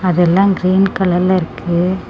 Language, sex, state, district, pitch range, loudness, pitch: Tamil, female, Tamil Nadu, Namakkal, 175-190 Hz, -14 LUFS, 185 Hz